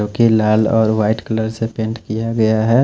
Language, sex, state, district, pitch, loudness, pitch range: Hindi, male, Chhattisgarh, Raipur, 110 Hz, -16 LUFS, 110-115 Hz